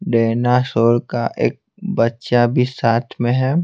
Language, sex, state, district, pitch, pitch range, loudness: Hindi, male, Bihar, Patna, 120 Hz, 115-125 Hz, -18 LUFS